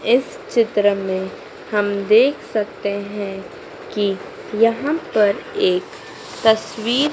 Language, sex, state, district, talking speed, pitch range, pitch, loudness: Hindi, female, Madhya Pradesh, Dhar, 100 wpm, 205-290 Hz, 220 Hz, -19 LUFS